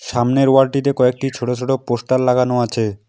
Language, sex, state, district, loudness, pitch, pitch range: Bengali, male, West Bengal, Alipurduar, -17 LUFS, 125 Hz, 120-135 Hz